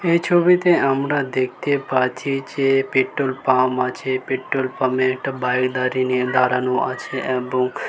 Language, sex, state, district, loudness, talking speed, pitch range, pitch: Bengali, male, West Bengal, Dakshin Dinajpur, -20 LUFS, 130 wpm, 130-135 Hz, 130 Hz